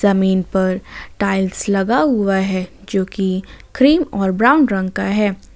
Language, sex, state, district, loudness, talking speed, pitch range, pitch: Hindi, female, Jharkhand, Ranchi, -17 LUFS, 150 wpm, 190-210 Hz, 195 Hz